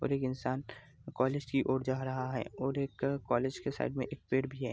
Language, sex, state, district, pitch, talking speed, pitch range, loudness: Hindi, male, Bihar, Araria, 130 Hz, 240 wpm, 130-140 Hz, -35 LUFS